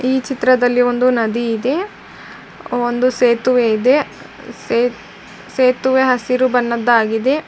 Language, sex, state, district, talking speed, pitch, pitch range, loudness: Kannada, female, Karnataka, Dharwad, 90 wpm, 245 Hz, 235-255 Hz, -15 LUFS